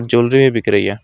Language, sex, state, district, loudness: Hindi, male, West Bengal, Alipurduar, -13 LUFS